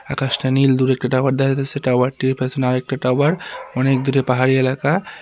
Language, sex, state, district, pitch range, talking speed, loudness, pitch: Bengali, male, Tripura, West Tripura, 130-135 Hz, 175 wpm, -17 LUFS, 130 Hz